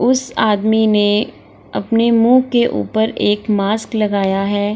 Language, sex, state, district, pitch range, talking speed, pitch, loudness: Hindi, female, Bihar, Gaya, 205-230 Hz, 140 wpm, 220 Hz, -15 LUFS